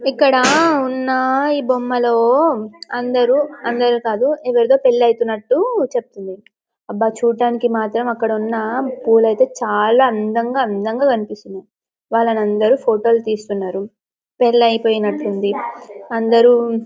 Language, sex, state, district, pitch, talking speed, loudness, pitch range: Telugu, female, Telangana, Karimnagar, 235 Hz, 105 wpm, -16 LUFS, 220-255 Hz